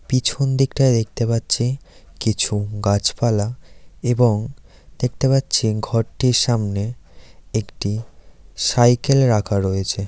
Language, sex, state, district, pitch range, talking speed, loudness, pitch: Bengali, male, West Bengal, Dakshin Dinajpur, 105-125 Hz, 90 wpm, -19 LUFS, 115 Hz